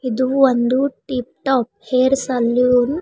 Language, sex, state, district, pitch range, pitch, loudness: Kannada, female, Karnataka, Bidar, 245-265 Hz, 255 Hz, -17 LUFS